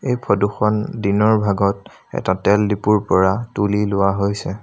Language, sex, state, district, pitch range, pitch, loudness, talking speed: Assamese, male, Assam, Sonitpur, 100-105 Hz, 100 Hz, -18 LUFS, 155 wpm